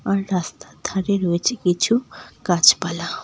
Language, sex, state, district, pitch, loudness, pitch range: Bengali, female, West Bengal, Cooch Behar, 180 Hz, -19 LUFS, 175-195 Hz